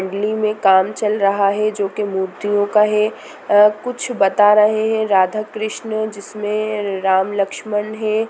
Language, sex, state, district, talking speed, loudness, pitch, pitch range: Hindi, female, Bihar, Sitamarhi, 150 wpm, -17 LUFS, 210 Hz, 200-215 Hz